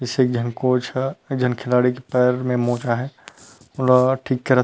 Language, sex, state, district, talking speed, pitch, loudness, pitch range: Chhattisgarhi, male, Chhattisgarh, Rajnandgaon, 180 wpm, 125 Hz, -20 LUFS, 125-130 Hz